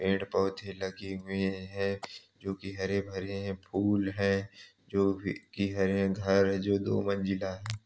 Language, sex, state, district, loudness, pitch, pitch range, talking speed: Hindi, male, Uttar Pradesh, Jalaun, -32 LUFS, 95 Hz, 95-100 Hz, 155 wpm